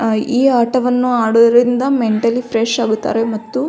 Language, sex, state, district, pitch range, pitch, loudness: Kannada, female, Karnataka, Belgaum, 225-250 Hz, 235 Hz, -14 LUFS